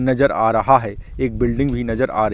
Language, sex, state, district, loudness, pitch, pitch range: Hindi, male, Chhattisgarh, Rajnandgaon, -18 LUFS, 120 Hz, 110-130 Hz